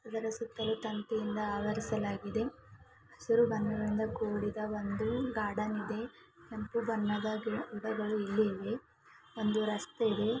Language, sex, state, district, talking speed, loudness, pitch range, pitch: Kannada, female, Karnataka, Belgaum, 110 wpm, -35 LUFS, 210-225 Hz, 215 Hz